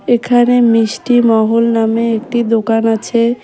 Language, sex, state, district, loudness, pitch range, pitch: Bengali, female, West Bengal, Cooch Behar, -12 LUFS, 225-240 Hz, 230 Hz